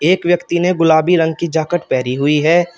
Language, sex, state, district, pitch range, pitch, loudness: Hindi, male, Uttar Pradesh, Shamli, 160-175 Hz, 170 Hz, -15 LUFS